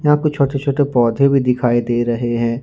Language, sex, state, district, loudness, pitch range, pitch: Hindi, male, Jharkhand, Ranchi, -16 LUFS, 120-140 Hz, 125 Hz